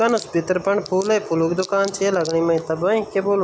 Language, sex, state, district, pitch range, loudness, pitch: Garhwali, male, Uttarakhand, Tehri Garhwal, 170-200 Hz, -20 LUFS, 190 Hz